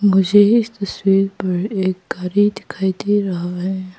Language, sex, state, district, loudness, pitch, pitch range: Hindi, female, Arunachal Pradesh, Papum Pare, -18 LUFS, 195 Hz, 185-205 Hz